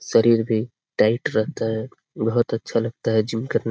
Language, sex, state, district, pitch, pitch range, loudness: Hindi, male, Bihar, Jamui, 115 Hz, 110-115 Hz, -22 LUFS